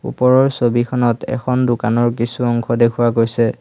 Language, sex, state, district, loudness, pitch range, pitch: Assamese, male, Assam, Hailakandi, -16 LUFS, 115-125 Hz, 120 Hz